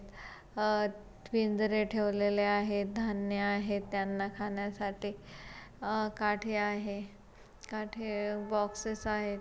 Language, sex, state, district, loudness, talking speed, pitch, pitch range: Marathi, female, Maharashtra, Chandrapur, -34 LUFS, 90 wpm, 210 Hz, 205-215 Hz